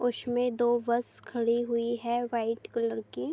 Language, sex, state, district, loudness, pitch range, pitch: Hindi, female, Uttar Pradesh, Budaun, -30 LUFS, 235-240 Hz, 235 Hz